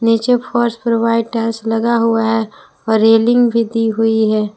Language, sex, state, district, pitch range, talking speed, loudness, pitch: Hindi, female, Jharkhand, Palamu, 225-230 Hz, 185 wpm, -15 LUFS, 230 Hz